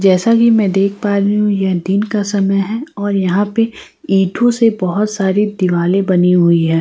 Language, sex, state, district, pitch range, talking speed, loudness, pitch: Hindi, female, Delhi, New Delhi, 185-210 Hz, 200 wpm, -14 LUFS, 200 Hz